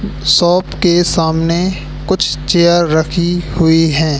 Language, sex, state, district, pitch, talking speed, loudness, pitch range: Hindi, male, Madhya Pradesh, Katni, 165 Hz, 115 wpm, -13 LUFS, 160-175 Hz